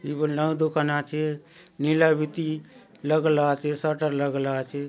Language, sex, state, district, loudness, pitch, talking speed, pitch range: Halbi, male, Chhattisgarh, Bastar, -25 LUFS, 150 Hz, 145 wpm, 145-155 Hz